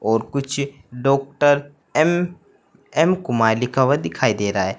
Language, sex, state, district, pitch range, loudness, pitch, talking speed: Hindi, male, Uttar Pradesh, Saharanpur, 120-145 Hz, -20 LUFS, 140 Hz, 150 wpm